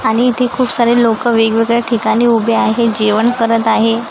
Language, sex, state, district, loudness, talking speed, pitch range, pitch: Marathi, female, Maharashtra, Gondia, -13 LUFS, 175 wpm, 225-235 Hz, 230 Hz